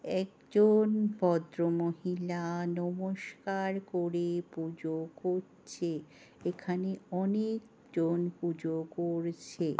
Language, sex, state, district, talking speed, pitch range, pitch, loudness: Bengali, female, West Bengal, North 24 Parganas, 65 wpm, 170-190 Hz, 175 Hz, -33 LUFS